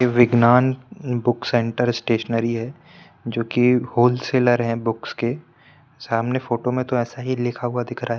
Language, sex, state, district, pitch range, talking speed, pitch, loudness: Hindi, male, Madhya Pradesh, Bhopal, 120-130 Hz, 155 wpm, 120 Hz, -21 LUFS